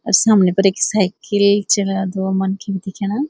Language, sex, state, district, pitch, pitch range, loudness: Garhwali, female, Uttarakhand, Uttarkashi, 200 Hz, 190-210 Hz, -17 LUFS